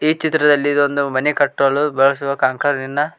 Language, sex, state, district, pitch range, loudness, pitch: Kannada, male, Karnataka, Koppal, 140-150 Hz, -16 LUFS, 145 Hz